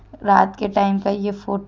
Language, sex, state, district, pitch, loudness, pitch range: Hindi, female, Jharkhand, Deoghar, 200 Hz, -19 LUFS, 200-205 Hz